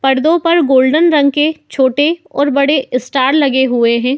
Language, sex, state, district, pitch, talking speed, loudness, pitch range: Hindi, female, Uttar Pradesh, Muzaffarnagar, 280 Hz, 170 wpm, -12 LUFS, 260-305 Hz